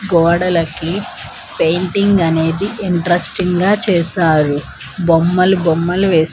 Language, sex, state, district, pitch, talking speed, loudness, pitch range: Telugu, female, Andhra Pradesh, Manyam, 175 Hz, 75 wpm, -14 LUFS, 165-190 Hz